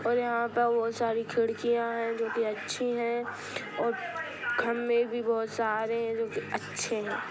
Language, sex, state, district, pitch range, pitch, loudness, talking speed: Hindi, female, Bihar, Sitamarhi, 230-235 Hz, 230 Hz, -30 LUFS, 170 wpm